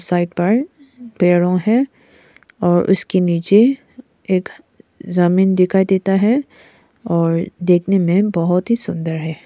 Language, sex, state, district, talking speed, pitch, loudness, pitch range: Hindi, female, Nagaland, Kohima, 120 wpm, 185 Hz, -16 LUFS, 175-215 Hz